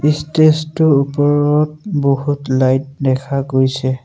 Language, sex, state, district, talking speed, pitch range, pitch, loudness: Assamese, male, Assam, Sonitpur, 105 wpm, 135-150 Hz, 145 Hz, -15 LUFS